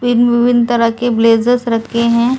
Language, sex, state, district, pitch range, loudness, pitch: Hindi, female, Delhi, New Delhi, 230-245 Hz, -13 LUFS, 235 Hz